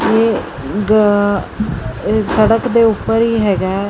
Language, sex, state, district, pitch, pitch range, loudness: Punjabi, female, Karnataka, Bangalore, 215 Hz, 205-225 Hz, -14 LUFS